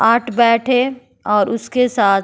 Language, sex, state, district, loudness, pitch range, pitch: Hindi, female, Goa, North and South Goa, -16 LUFS, 210-250 Hz, 230 Hz